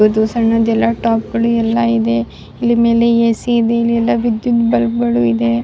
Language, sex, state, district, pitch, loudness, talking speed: Kannada, female, Karnataka, Raichur, 230 Hz, -14 LUFS, 150 wpm